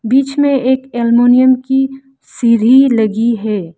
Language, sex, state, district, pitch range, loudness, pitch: Hindi, female, Arunachal Pradesh, Lower Dibang Valley, 230-270 Hz, -12 LUFS, 250 Hz